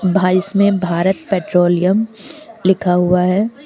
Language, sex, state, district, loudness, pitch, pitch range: Hindi, female, Uttar Pradesh, Lucknow, -15 LUFS, 190 Hz, 180-200 Hz